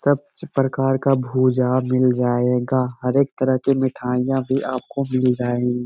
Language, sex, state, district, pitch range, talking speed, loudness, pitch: Hindi, male, Bihar, Gaya, 125-135 Hz, 165 wpm, -20 LUFS, 130 Hz